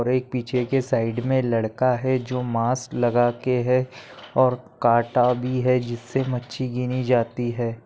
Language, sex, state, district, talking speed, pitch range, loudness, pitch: Hindi, male, Maharashtra, Chandrapur, 155 wpm, 120-130 Hz, -23 LUFS, 125 Hz